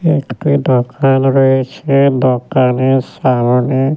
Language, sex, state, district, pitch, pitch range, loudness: Bengali, male, West Bengal, Jhargram, 130 Hz, 130-140 Hz, -13 LUFS